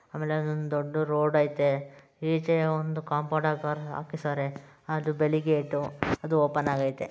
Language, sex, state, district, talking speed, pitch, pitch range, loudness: Kannada, male, Karnataka, Mysore, 135 wpm, 150 Hz, 145-155 Hz, -28 LUFS